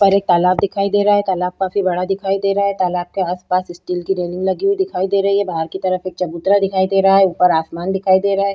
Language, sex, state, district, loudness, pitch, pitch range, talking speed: Hindi, female, Goa, North and South Goa, -17 LUFS, 190 Hz, 180-195 Hz, 290 wpm